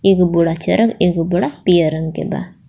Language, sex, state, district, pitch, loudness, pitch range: Bhojpuri, female, Jharkhand, Palamu, 175 Hz, -16 LUFS, 165-180 Hz